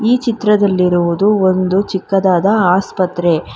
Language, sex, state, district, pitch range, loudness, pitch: Kannada, female, Karnataka, Bangalore, 180-205 Hz, -14 LUFS, 190 Hz